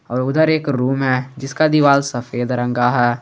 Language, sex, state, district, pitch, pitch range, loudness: Hindi, male, Jharkhand, Garhwa, 130 Hz, 120-140 Hz, -17 LUFS